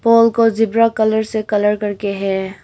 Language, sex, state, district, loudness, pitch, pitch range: Hindi, female, Arunachal Pradesh, Longding, -16 LUFS, 220 Hz, 205-225 Hz